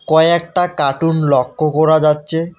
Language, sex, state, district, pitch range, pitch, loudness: Bengali, male, West Bengal, Alipurduar, 150-165 Hz, 155 Hz, -14 LUFS